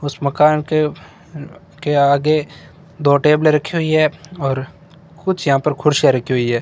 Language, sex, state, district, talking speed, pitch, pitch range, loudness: Hindi, male, Rajasthan, Bikaner, 165 wpm, 150 Hz, 140-155 Hz, -16 LUFS